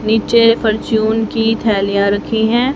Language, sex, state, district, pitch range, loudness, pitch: Hindi, female, Haryana, Rohtak, 215-230 Hz, -14 LUFS, 220 Hz